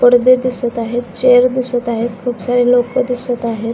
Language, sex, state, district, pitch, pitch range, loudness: Marathi, female, Maharashtra, Aurangabad, 245 Hz, 235-250 Hz, -15 LUFS